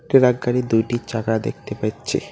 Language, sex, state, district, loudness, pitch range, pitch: Bengali, male, West Bengal, Cooch Behar, -21 LUFS, 110-125 Hz, 120 Hz